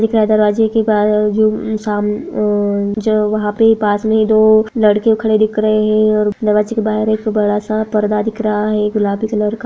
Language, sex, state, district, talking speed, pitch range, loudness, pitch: Hindi, female, Bihar, Araria, 210 wpm, 210-220 Hz, -14 LUFS, 215 Hz